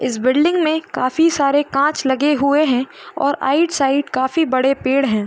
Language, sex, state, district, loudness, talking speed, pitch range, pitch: Hindi, female, Uttar Pradesh, Hamirpur, -17 LUFS, 180 wpm, 260-300 Hz, 280 Hz